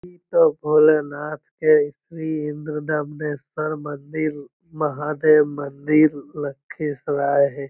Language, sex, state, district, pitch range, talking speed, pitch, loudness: Magahi, female, Bihar, Lakhisarai, 145-155 Hz, 95 wpm, 150 Hz, -21 LUFS